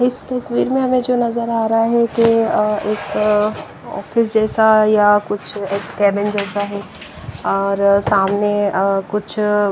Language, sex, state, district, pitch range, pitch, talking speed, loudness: Hindi, female, Punjab, Pathankot, 200-230 Hz, 210 Hz, 135 wpm, -17 LUFS